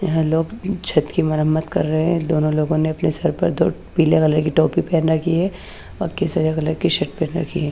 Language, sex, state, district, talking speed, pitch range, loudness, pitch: Hindi, female, Haryana, Charkhi Dadri, 165 wpm, 155-170 Hz, -19 LUFS, 160 Hz